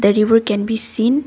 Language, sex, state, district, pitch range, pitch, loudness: English, female, Assam, Kamrup Metropolitan, 210-230 Hz, 225 Hz, -16 LUFS